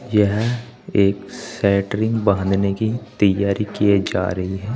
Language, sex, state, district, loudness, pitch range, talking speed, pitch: Hindi, male, Uttar Pradesh, Saharanpur, -19 LUFS, 100-110 Hz, 125 wpm, 100 Hz